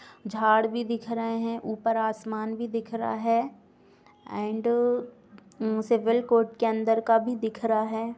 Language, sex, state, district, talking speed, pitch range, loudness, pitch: Hindi, female, Bihar, East Champaran, 155 wpm, 220-235 Hz, -27 LUFS, 230 Hz